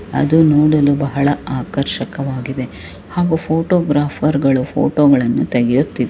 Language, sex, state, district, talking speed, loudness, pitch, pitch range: Kannada, female, Karnataka, Raichur, 100 wpm, -16 LUFS, 140 Hz, 130-150 Hz